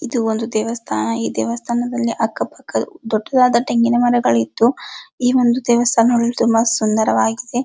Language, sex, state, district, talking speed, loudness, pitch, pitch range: Kannada, male, Karnataka, Dharwad, 125 wpm, -17 LUFS, 235 Hz, 220-245 Hz